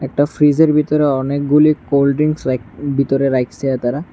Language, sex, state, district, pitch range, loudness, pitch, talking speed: Bengali, male, Tripura, West Tripura, 135-150 Hz, -15 LUFS, 140 Hz, 130 wpm